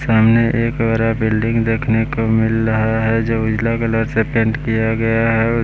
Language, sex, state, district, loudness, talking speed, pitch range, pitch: Hindi, male, Bihar, West Champaran, -16 LUFS, 180 wpm, 110-115 Hz, 115 Hz